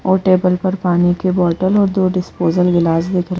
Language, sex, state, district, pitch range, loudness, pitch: Hindi, female, Madhya Pradesh, Bhopal, 175-185 Hz, -15 LUFS, 180 Hz